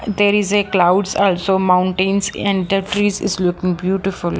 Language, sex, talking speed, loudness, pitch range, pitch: English, female, 165 wpm, -17 LUFS, 185-200 Hz, 195 Hz